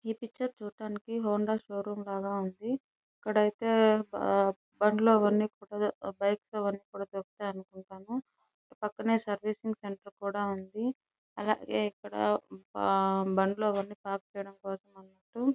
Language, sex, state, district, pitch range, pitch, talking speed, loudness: Telugu, female, Andhra Pradesh, Chittoor, 195-215 Hz, 205 Hz, 95 wpm, -32 LUFS